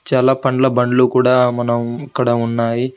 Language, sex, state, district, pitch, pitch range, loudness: Telugu, male, Telangana, Hyderabad, 125 Hz, 120-130 Hz, -16 LUFS